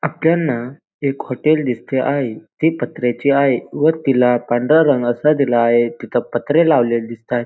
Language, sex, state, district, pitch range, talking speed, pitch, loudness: Marathi, male, Maharashtra, Dhule, 120-150 Hz, 155 wpm, 130 Hz, -17 LUFS